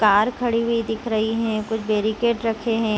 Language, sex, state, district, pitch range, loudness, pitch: Hindi, female, Chhattisgarh, Bilaspur, 215-230 Hz, -22 LUFS, 225 Hz